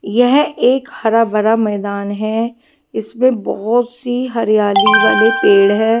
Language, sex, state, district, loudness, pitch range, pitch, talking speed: Hindi, female, Punjab, Kapurthala, -14 LUFS, 205-245 Hz, 225 Hz, 130 wpm